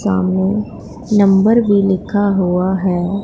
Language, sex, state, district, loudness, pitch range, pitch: Hindi, female, Punjab, Pathankot, -14 LUFS, 185-205 Hz, 195 Hz